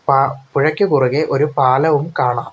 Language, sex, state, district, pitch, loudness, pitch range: Malayalam, male, Kerala, Kollam, 140 Hz, -16 LUFS, 135-150 Hz